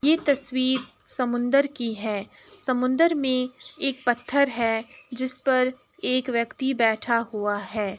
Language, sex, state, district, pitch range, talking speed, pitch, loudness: Hindi, female, Uttar Pradesh, Jalaun, 235-270 Hz, 130 wpm, 255 Hz, -25 LUFS